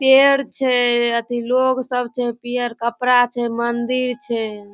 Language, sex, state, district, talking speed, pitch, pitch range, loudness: Maithili, female, Bihar, Darbhanga, 140 wpm, 245 Hz, 235-255 Hz, -19 LUFS